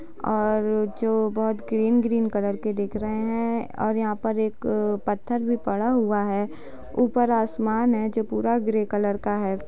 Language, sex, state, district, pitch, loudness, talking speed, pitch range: Hindi, female, Bihar, Jamui, 220 Hz, -24 LUFS, 175 wpm, 210-230 Hz